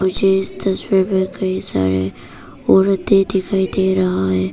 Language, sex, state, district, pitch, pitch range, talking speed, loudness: Hindi, female, Arunachal Pradesh, Papum Pare, 190 Hz, 185-195 Hz, 145 wpm, -17 LUFS